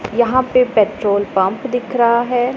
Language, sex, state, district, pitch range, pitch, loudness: Hindi, female, Punjab, Pathankot, 210-250 Hz, 240 Hz, -16 LUFS